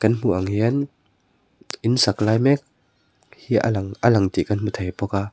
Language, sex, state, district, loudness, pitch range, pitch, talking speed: Mizo, male, Mizoram, Aizawl, -21 LUFS, 100-120 Hz, 110 Hz, 200 wpm